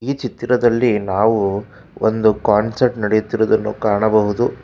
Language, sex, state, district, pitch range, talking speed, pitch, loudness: Kannada, male, Karnataka, Bangalore, 105-115 Hz, 90 wpm, 110 Hz, -17 LUFS